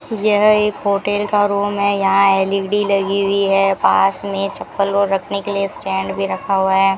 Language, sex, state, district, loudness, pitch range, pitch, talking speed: Hindi, female, Rajasthan, Bikaner, -16 LUFS, 195-205 Hz, 200 Hz, 200 wpm